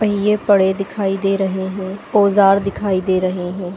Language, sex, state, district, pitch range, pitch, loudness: Hindi, female, Chhattisgarh, Raigarh, 190-200 Hz, 195 Hz, -17 LUFS